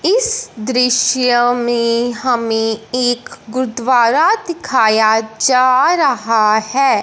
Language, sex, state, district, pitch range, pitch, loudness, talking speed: Hindi, female, Punjab, Fazilka, 225-260 Hz, 245 Hz, -14 LUFS, 85 wpm